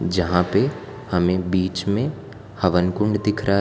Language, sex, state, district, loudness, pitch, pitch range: Hindi, female, Gujarat, Valsad, -21 LUFS, 100 Hz, 90-105 Hz